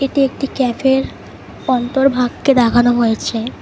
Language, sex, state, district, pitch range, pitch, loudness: Bengali, female, West Bengal, Cooch Behar, 240-270 Hz, 255 Hz, -15 LUFS